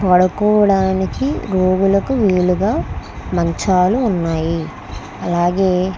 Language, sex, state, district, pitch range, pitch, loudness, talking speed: Telugu, female, Andhra Pradesh, Krishna, 175-195 Hz, 185 Hz, -16 LUFS, 70 wpm